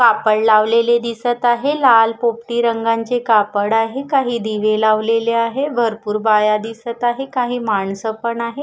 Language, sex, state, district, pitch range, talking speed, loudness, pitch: Marathi, female, Maharashtra, Gondia, 220-240 Hz, 145 wpm, -17 LUFS, 230 Hz